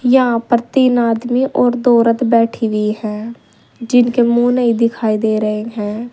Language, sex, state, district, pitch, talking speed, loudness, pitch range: Hindi, female, Uttar Pradesh, Saharanpur, 235 Hz, 165 wpm, -15 LUFS, 220-245 Hz